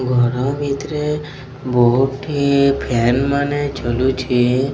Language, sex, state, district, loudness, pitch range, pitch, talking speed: Odia, male, Odisha, Sambalpur, -17 LUFS, 125-140 Hz, 135 Hz, 75 wpm